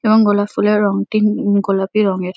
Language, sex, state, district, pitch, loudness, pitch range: Bengali, female, West Bengal, Kolkata, 205 Hz, -15 LUFS, 200-215 Hz